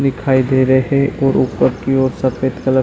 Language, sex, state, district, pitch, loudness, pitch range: Hindi, male, Chhattisgarh, Bilaspur, 130 Hz, -15 LUFS, 130-135 Hz